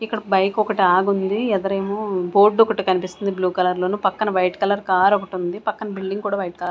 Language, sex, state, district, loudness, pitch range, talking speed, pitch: Telugu, female, Andhra Pradesh, Sri Satya Sai, -20 LUFS, 185-205 Hz, 195 wpm, 195 Hz